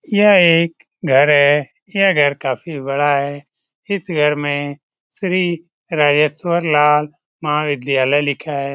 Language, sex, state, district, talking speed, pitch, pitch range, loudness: Hindi, male, Bihar, Lakhisarai, 125 wpm, 150 Hz, 145-170 Hz, -16 LUFS